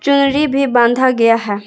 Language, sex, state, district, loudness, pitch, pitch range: Hindi, female, Jharkhand, Garhwa, -13 LUFS, 255 Hz, 230-275 Hz